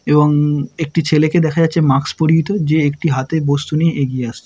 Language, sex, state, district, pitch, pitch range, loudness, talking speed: Bengali, male, West Bengal, Paschim Medinipur, 155 Hz, 145-160 Hz, -15 LUFS, 190 wpm